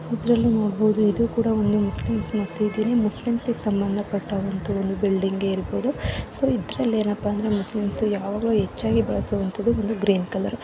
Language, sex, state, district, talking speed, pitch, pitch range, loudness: Kannada, female, Karnataka, Mysore, 175 wpm, 210 Hz, 200-220 Hz, -23 LUFS